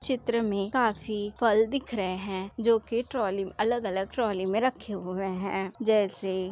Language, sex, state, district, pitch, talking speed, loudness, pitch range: Hindi, female, Uttar Pradesh, Jalaun, 210 Hz, 155 wpm, -28 LUFS, 195-235 Hz